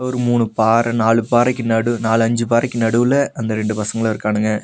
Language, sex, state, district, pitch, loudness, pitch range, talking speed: Tamil, male, Tamil Nadu, Nilgiris, 115 Hz, -17 LUFS, 110-120 Hz, 170 wpm